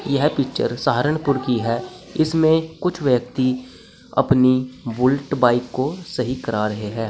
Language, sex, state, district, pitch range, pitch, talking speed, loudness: Hindi, male, Uttar Pradesh, Saharanpur, 120-140 Hz, 130 Hz, 135 wpm, -20 LUFS